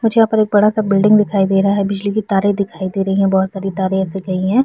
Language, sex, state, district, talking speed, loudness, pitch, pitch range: Hindi, female, Bihar, Vaishali, 310 wpm, -15 LUFS, 195 Hz, 195-210 Hz